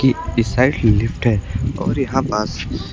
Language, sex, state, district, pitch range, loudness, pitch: Hindi, male, Uttar Pradesh, Lucknow, 105-130 Hz, -19 LUFS, 115 Hz